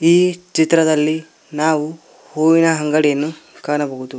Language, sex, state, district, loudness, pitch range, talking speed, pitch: Kannada, male, Karnataka, Koppal, -17 LUFS, 150-160 Hz, 85 wpm, 155 Hz